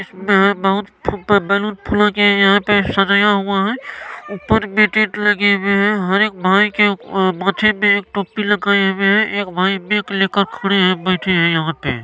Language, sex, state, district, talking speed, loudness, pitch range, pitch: Maithili, male, Bihar, Supaul, 180 wpm, -15 LUFS, 195-210 Hz, 200 Hz